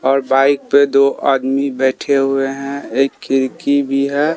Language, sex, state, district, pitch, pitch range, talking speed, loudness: Hindi, male, Bihar, Katihar, 140 Hz, 135-140 Hz, 165 wpm, -15 LUFS